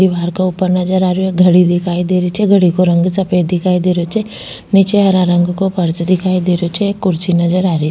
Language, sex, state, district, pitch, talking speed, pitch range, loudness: Rajasthani, female, Rajasthan, Nagaur, 180 Hz, 250 wpm, 175-190 Hz, -13 LUFS